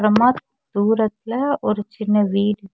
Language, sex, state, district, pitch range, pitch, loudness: Tamil, female, Tamil Nadu, Kanyakumari, 205-225 Hz, 215 Hz, -20 LUFS